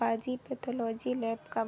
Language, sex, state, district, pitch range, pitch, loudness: Hindi, female, Chhattisgarh, Bilaspur, 225-250 Hz, 235 Hz, -34 LUFS